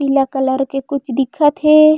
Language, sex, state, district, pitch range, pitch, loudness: Chhattisgarhi, female, Chhattisgarh, Raigarh, 270-295 Hz, 275 Hz, -15 LUFS